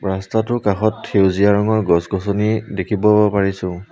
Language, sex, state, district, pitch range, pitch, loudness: Assamese, male, Assam, Sonitpur, 95-110 Hz, 100 Hz, -17 LUFS